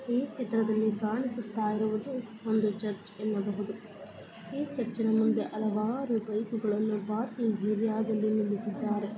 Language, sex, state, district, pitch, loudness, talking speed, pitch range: Kannada, female, Karnataka, Belgaum, 215 Hz, -31 LUFS, 120 wpm, 210-225 Hz